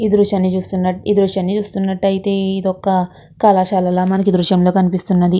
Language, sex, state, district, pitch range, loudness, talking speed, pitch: Telugu, female, Andhra Pradesh, Guntur, 185-195 Hz, -16 LUFS, 120 wpm, 190 Hz